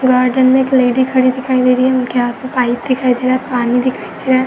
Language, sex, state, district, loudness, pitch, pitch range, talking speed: Hindi, female, Uttar Pradesh, Etah, -14 LUFS, 255 Hz, 250-260 Hz, 295 wpm